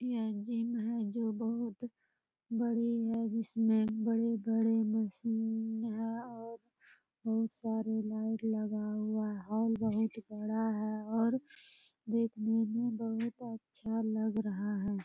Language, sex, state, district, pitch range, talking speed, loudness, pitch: Hindi, female, Bihar, Purnia, 220-230 Hz, 115 wpm, -35 LUFS, 225 Hz